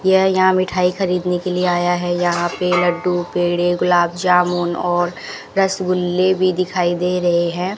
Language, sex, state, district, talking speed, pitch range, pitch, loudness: Hindi, female, Rajasthan, Bikaner, 160 wpm, 175-185 Hz, 180 Hz, -17 LUFS